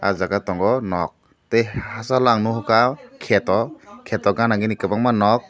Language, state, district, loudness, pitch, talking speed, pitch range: Kokborok, Tripura, Dhalai, -20 LUFS, 110 Hz, 140 wpm, 100-115 Hz